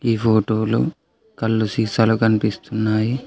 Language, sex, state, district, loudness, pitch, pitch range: Telugu, male, Telangana, Adilabad, -19 LUFS, 110 Hz, 110-115 Hz